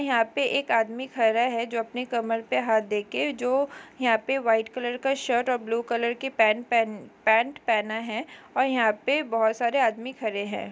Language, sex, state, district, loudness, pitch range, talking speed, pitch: Hindi, female, Chhattisgarh, Kabirdham, -25 LUFS, 225-255 Hz, 195 wpm, 235 Hz